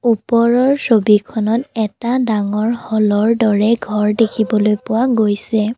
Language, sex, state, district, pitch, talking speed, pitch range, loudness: Assamese, female, Assam, Kamrup Metropolitan, 220 Hz, 105 wpm, 210-235 Hz, -15 LUFS